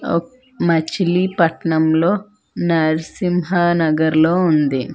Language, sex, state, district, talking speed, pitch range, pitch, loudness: Telugu, female, Andhra Pradesh, Manyam, 60 wpm, 160-180 Hz, 170 Hz, -17 LUFS